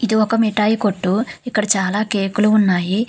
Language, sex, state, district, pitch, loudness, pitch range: Telugu, female, Telangana, Hyderabad, 210 Hz, -17 LUFS, 195-220 Hz